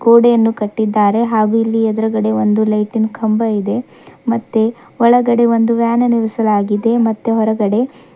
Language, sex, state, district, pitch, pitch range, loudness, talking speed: Kannada, female, Karnataka, Bidar, 225 Hz, 215-235 Hz, -14 LUFS, 120 wpm